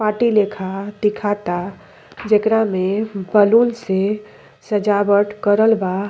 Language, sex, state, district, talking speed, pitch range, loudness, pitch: Bhojpuri, female, Uttar Pradesh, Deoria, 100 wpm, 195-215 Hz, -18 LUFS, 205 Hz